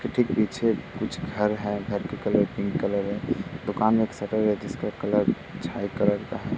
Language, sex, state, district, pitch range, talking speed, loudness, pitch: Hindi, male, Uttar Pradesh, Muzaffarnagar, 100-110 Hz, 200 wpm, -26 LUFS, 105 Hz